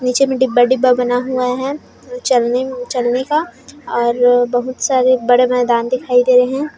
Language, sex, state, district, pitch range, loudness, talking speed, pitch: Chhattisgarhi, female, Chhattisgarh, Raigarh, 245-260 Hz, -15 LUFS, 150 wpm, 250 Hz